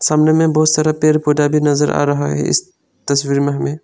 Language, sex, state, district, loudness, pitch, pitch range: Hindi, male, Arunachal Pradesh, Lower Dibang Valley, -15 LUFS, 150 Hz, 140-155 Hz